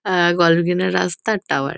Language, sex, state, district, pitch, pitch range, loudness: Bengali, female, West Bengal, Kolkata, 175 Hz, 170-185 Hz, -18 LUFS